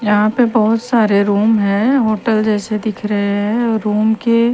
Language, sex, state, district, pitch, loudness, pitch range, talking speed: Hindi, female, Haryana, Rohtak, 215 Hz, -15 LUFS, 210-230 Hz, 170 wpm